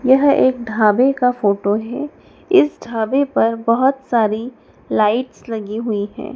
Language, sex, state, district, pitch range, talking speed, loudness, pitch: Hindi, female, Madhya Pradesh, Dhar, 220-265 Hz, 140 wpm, -17 LUFS, 235 Hz